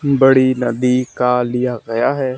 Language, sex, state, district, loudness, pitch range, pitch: Hindi, male, Haryana, Charkhi Dadri, -15 LUFS, 125-130 Hz, 125 Hz